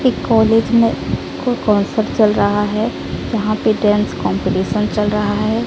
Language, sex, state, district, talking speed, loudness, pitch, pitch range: Hindi, female, Odisha, Sambalpur, 160 wpm, -16 LUFS, 215 Hz, 210-225 Hz